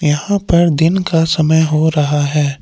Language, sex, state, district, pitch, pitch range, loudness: Hindi, male, Jharkhand, Palamu, 160 Hz, 150-165 Hz, -13 LUFS